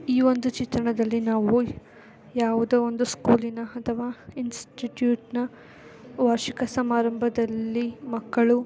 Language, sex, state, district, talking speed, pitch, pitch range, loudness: Kannada, female, Karnataka, Dakshina Kannada, 95 wpm, 240 Hz, 230-245 Hz, -25 LUFS